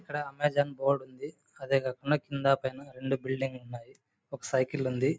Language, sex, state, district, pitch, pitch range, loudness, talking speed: Telugu, male, Andhra Pradesh, Anantapur, 135 Hz, 130-145 Hz, -31 LUFS, 160 wpm